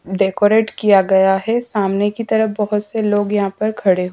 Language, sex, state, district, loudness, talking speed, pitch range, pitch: Hindi, female, Madhya Pradesh, Dhar, -16 LUFS, 190 wpm, 195-220 Hz, 205 Hz